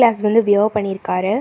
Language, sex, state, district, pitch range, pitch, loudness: Tamil, female, Karnataka, Bangalore, 200-220 Hz, 210 Hz, -17 LUFS